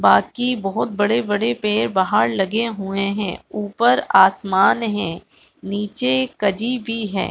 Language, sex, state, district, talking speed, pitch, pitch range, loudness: Hindi, female, Chhattisgarh, Balrampur, 125 wpm, 210 Hz, 195-230 Hz, -19 LUFS